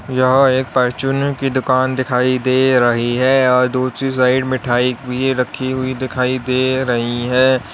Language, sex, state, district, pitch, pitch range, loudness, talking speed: Hindi, male, Uttar Pradesh, Lalitpur, 130 Hz, 125-130 Hz, -16 LUFS, 155 wpm